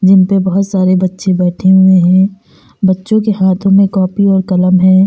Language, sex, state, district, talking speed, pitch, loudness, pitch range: Hindi, female, Uttar Pradesh, Lalitpur, 190 wpm, 190 Hz, -10 LUFS, 185-195 Hz